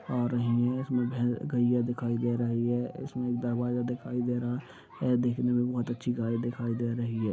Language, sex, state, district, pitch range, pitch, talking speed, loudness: Hindi, male, Maharashtra, Aurangabad, 120-125 Hz, 120 Hz, 195 wpm, -30 LUFS